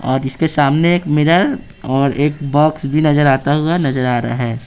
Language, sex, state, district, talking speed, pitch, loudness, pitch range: Hindi, male, Bihar, Patna, 205 wpm, 145 Hz, -15 LUFS, 135-155 Hz